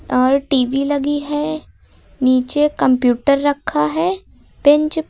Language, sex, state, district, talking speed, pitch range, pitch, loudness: Hindi, female, Uttar Pradesh, Lucknow, 120 wpm, 255-295 Hz, 285 Hz, -16 LUFS